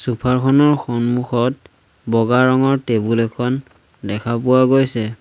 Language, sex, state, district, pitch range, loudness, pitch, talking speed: Assamese, male, Assam, Sonitpur, 115-130 Hz, -17 LUFS, 125 Hz, 125 wpm